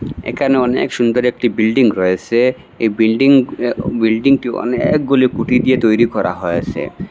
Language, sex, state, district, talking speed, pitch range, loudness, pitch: Bengali, male, Assam, Hailakandi, 135 wpm, 110-130 Hz, -15 LUFS, 120 Hz